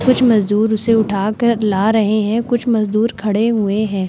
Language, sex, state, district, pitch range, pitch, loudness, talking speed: Hindi, female, Uttar Pradesh, Muzaffarnagar, 210-230 Hz, 215 Hz, -15 LUFS, 190 wpm